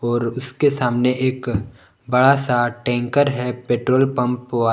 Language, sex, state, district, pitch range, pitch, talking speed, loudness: Hindi, male, Jharkhand, Palamu, 120-130 Hz, 125 Hz, 140 wpm, -19 LUFS